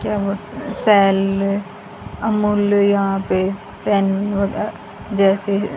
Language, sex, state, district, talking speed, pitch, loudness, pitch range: Hindi, female, Haryana, Jhajjar, 75 wpm, 200 Hz, -18 LUFS, 195-205 Hz